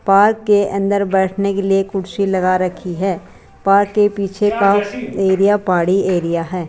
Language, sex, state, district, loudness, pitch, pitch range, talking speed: Hindi, female, Rajasthan, Jaipur, -16 LUFS, 195 Hz, 185-200 Hz, 160 wpm